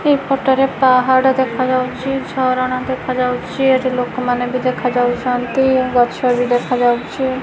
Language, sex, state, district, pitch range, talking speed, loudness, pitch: Odia, female, Odisha, Khordha, 245-265 Hz, 95 wpm, -16 LUFS, 255 Hz